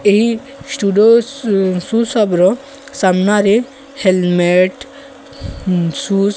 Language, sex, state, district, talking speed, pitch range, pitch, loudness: Odia, female, Odisha, Sambalpur, 95 wpm, 185-260 Hz, 210 Hz, -14 LUFS